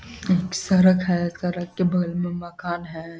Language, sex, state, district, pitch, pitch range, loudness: Hindi, male, Bihar, Saharsa, 175 Hz, 175-180 Hz, -23 LUFS